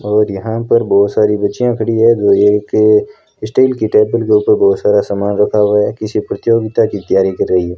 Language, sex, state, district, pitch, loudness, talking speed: Hindi, female, Rajasthan, Bikaner, 110 Hz, -13 LUFS, 215 wpm